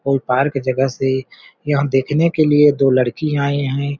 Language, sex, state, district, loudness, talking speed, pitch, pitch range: Hindi, male, Chhattisgarh, Balrampur, -17 LUFS, 195 wpm, 140 Hz, 135-145 Hz